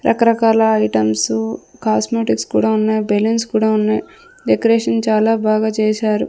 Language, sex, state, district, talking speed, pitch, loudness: Telugu, female, Andhra Pradesh, Sri Satya Sai, 115 wpm, 215 Hz, -16 LUFS